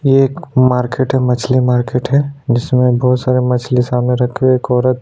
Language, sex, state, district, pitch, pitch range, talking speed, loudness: Hindi, male, Maharashtra, Aurangabad, 125 Hz, 125-130 Hz, 205 wpm, -14 LUFS